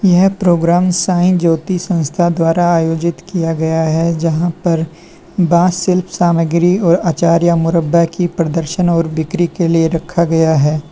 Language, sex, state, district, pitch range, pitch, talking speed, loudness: Hindi, male, Uttar Pradesh, Lalitpur, 165-175 Hz, 170 Hz, 155 wpm, -14 LUFS